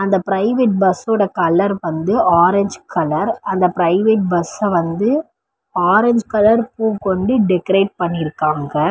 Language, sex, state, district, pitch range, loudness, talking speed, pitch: Tamil, female, Tamil Nadu, Chennai, 175-220 Hz, -16 LUFS, 120 wpm, 195 Hz